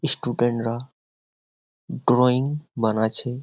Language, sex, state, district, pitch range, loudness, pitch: Bengali, male, West Bengal, Jhargram, 110-125 Hz, -22 LUFS, 120 Hz